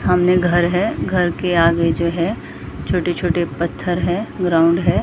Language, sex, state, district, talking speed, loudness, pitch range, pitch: Hindi, female, Jharkhand, Jamtara, 145 wpm, -18 LUFS, 170-180 Hz, 175 Hz